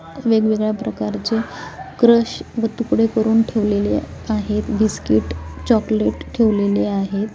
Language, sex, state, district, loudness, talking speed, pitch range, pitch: Marathi, female, Maharashtra, Pune, -19 LUFS, 100 wpm, 200-225 Hz, 215 Hz